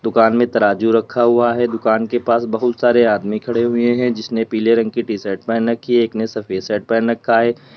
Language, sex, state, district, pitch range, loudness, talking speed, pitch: Hindi, male, Uttar Pradesh, Lalitpur, 110-120 Hz, -16 LUFS, 240 wpm, 115 Hz